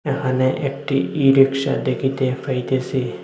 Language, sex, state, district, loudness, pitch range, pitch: Bengali, male, Assam, Hailakandi, -19 LUFS, 130-135 Hz, 135 Hz